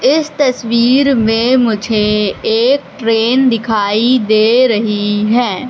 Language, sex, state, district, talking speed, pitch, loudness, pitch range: Hindi, female, Madhya Pradesh, Katni, 105 wpm, 235 Hz, -12 LUFS, 215-260 Hz